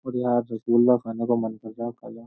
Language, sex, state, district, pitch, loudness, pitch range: Hindi, male, Uttar Pradesh, Jyotiba Phule Nagar, 120 Hz, -24 LUFS, 115-120 Hz